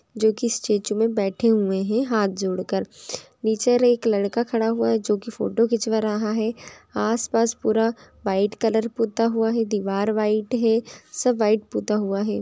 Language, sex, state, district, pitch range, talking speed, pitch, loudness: Hindi, female, Andhra Pradesh, Chittoor, 210-230 Hz, 170 wpm, 220 Hz, -22 LUFS